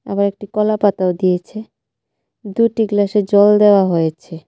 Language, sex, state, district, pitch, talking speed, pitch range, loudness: Bengali, female, Tripura, West Tripura, 205 Hz, 135 wpm, 185-210 Hz, -15 LUFS